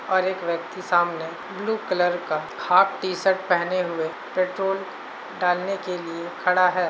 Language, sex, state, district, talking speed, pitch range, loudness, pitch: Hindi, male, Uttar Pradesh, Hamirpur, 155 wpm, 170-190 Hz, -24 LUFS, 180 Hz